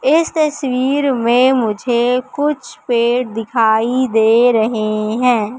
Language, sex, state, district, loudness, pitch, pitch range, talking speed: Hindi, female, Madhya Pradesh, Katni, -15 LUFS, 245 Hz, 225-260 Hz, 105 wpm